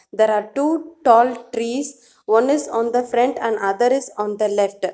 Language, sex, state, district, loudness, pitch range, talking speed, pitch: English, female, Telangana, Hyderabad, -19 LUFS, 215-250 Hz, 195 wpm, 235 Hz